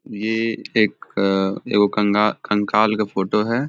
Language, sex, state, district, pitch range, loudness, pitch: Maithili, male, Bihar, Samastipur, 100-110 Hz, -20 LUFS, 105 Hz